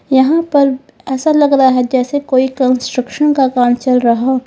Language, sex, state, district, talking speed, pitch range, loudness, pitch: Hindi, female, Uttar Pradesh, Lalitpur, 185 wpm, 255-280 Hz, -13 LUFS, 260 Hz